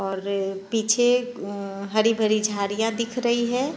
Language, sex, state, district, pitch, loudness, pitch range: Hindi, female, Bihar, Muzaffarpur, 220 Hz, -24 LUFS, 200-240 Hz